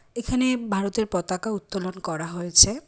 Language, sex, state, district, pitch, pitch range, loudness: Bengali, female, West Bengal, Kolkata, 195 Hz, 180-225 Hz, -24 LUFS